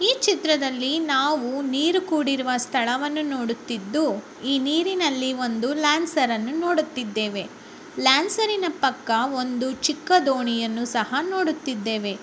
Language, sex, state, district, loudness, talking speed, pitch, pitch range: Kannada, female, Karnataka, Dakshina Kannada, -23 LUFS, 100 wpm, 270 Hz, 245-310 Hz